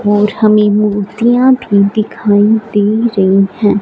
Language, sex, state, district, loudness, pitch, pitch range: Hindi, male, Punjab, Fazilka, -11 LUFS, 210 Hz, 205-220 Hz